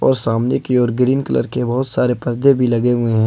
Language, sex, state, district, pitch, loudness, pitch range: Hindi, male, Jharkhand, Ranchi, 125 Hz, -17 LUFS, 120-130 Hz